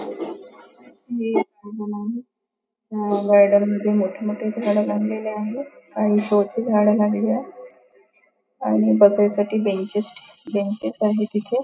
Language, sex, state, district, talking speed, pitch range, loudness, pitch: Marathi, female, Maharashtra, Nagpur, 120 wpm, 205-220 Hz, -21 LUFS, 210 Hz